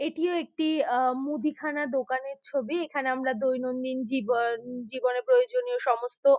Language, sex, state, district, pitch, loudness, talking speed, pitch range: Bengali, female, West Bengal, Purulia, 265 Hz, -28 LUFS, 140 wpm, 255-300 Hz